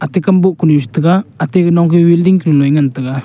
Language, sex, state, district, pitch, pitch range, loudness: Wancho, male, Arunachal Pradesh, Longding, 170 Hz, 150-185 Hz, -11 LUFS